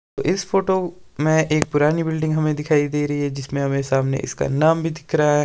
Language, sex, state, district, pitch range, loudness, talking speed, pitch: Hindi, male, Himachal Pradesh, Shimla, 145-160 Hz, -20 LUFS, 210 wpm, 150 Hz